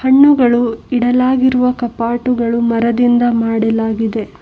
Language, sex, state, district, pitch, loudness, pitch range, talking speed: Kannada, female, Karnataka, Bangalore, 240 Hz, -14 LUFS, 230-250 Hz, 70 wpm